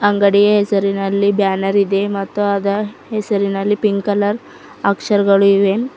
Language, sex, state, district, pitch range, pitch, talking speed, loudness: Kannada, female, Karnataka, Bidar, 200-205 Hz, 200 Hz, 110 wpm, -16 LUFS